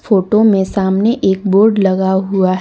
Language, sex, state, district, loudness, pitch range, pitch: Hindi, female, Jharkhand, Deoghar, -13 LUFS, 190-210 Hz, 195 Hz